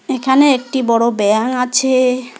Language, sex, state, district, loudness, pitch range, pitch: Bengali, female, West Bengal, Alipurduar, -14 LUFS, 235-265 Hz, 255 Hz